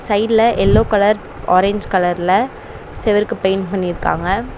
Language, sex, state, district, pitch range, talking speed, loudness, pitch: Tamil, female, Tamil Nadu, Chennai, 185-215 Hz, 105 wpm, -16 LUFS, 205 Hz